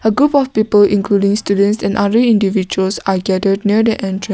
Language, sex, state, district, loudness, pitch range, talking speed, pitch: English, female, Nagaland, Kohima, -14 LUFS, 195-215 Hz, 195 wpm, 200 Hz